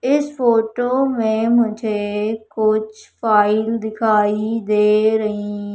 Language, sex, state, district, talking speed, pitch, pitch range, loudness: Hindi, female, Madhya Pradesh, Umaria, 95 wpm, 220 Hz, 210-230 Hz, -18 LUFS